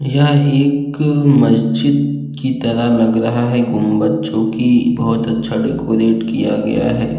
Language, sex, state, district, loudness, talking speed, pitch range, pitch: Hindi, male, Uttar Pradesh, Jalaun, -15 LUFS, 135 wpm, 110-135 Hz, 115 Hz